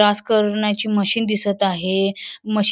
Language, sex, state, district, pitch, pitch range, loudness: Marathi, female, Maharashtra, Solapur, 210 Hz, 200-215 Hz, -19 LUFS